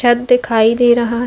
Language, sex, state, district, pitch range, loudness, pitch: Hindi, female, Chhattisgarh, Bastar, 235-245 Hz, -13 LUFS, 240 Hz